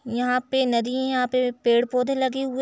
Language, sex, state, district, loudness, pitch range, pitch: Hindi, female, Uttar Pradesh, Jalaun, -23 LUFS, 245-265 Hz, 255 Hz